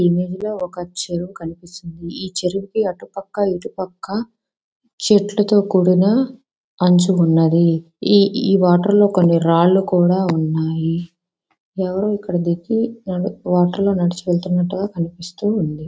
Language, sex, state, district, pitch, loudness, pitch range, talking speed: Telugu, female, Andhra Pradesh, Visakhapatnam, 180 Hz, -18 LUFS, 175-200 Hz, 115 wpm